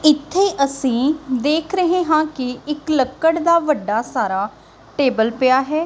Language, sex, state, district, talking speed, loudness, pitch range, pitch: Punjabi, female, Punjab, Kapurthala, 145 wpm, -18 LUFS, 255-315 Hz, 290 Hz